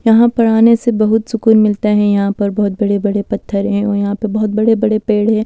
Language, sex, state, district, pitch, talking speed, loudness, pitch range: Hindi, female, Delhi, New Delhi, 215 Hz, 230 wpm, -13 LUFS, 205-225 Hz